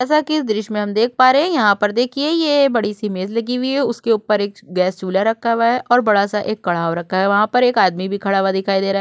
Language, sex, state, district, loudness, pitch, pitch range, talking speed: Hindi, female, Uttar Pradesh, Budaun, -17 LUFS, 215 Hz, 195-245 Hz, 295 wpm